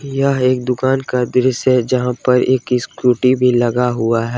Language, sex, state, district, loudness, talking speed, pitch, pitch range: Hindi, male, Jharkhand, Ranchi, -15 LUFS, 180 wpm, 125 Hz, 125-130 Hz